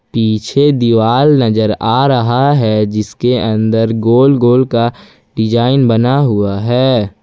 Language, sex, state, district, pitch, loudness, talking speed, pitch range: Hindi, male, Jharkhand, Ranchi, 115 Hz, -12 LUFS, 125 wpm, 110-130 Hz